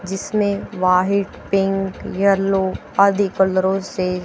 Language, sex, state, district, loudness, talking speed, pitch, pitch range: Hindi, female, Haryana, Charkhi Dadri, -19 LUFS, 100 wpm, 195 Hz, 185-200 Hz